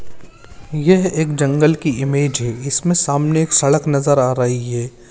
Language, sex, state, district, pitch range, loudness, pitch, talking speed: Hindi, male, Uttarakhand, Uttarkashi, 130-155 Hz, -16 LUFS, 145 Hz, 165 wpm